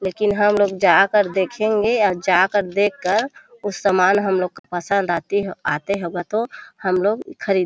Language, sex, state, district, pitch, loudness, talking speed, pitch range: Hindi, female, Chhattisgarh, Bilaspur, 200 Hz, -19 LUFS, 180 wpm, 185-210 Hz